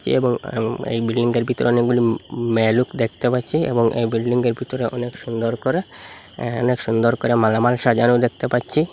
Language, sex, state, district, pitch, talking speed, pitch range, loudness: Bengali, male, Assam, Hailakandi, 120 Hz, 180 wpm, 115-125 Hz, -20 LUFS